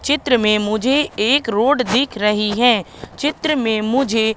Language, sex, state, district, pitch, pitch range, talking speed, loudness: Hindi, female, Madhya Pradesh, Katni, 235 Hz, 215-280 Hz, 150 wpm, -17 LUFS